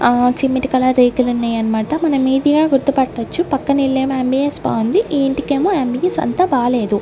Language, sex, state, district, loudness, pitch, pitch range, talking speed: Telugu, female, Andhra Pradesh, Sri Satya Sai, -16 LUFS, 265 Hz, 245-285 Hz, 145 wpm